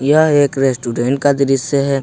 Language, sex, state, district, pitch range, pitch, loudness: Hindi, male, Jharkhand, Ranchi, 135-145 Hz, 140 Hz, -15 LUFS